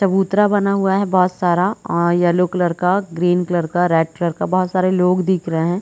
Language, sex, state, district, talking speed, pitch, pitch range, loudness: Hindi, female, Chhattisgarh, Bilaspur, 225 wpm, 180 Hz, 175-190 Hz, -17 LUFS